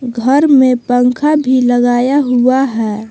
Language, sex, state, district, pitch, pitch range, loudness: Hindi, female, Jharkhand, Palamu, 250 Hz, 245-270 Hz, -11 LUFS